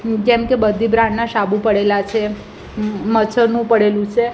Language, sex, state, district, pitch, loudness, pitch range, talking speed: Gujarati, female, Gujarat, Gandhinagar, 220 Hz, -16 LUFS, 210-230 Hz, 140 wpm